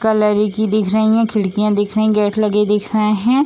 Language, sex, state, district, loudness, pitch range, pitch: Hindi, female, Bihar, Gopalganj, -16 LUFS, 210-220 Hz, 215 Hz